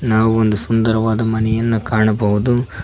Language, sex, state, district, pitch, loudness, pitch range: Kannada, male, Karnataka, Koppal, 110 Hz, -16 LUFS, 110-115 Hz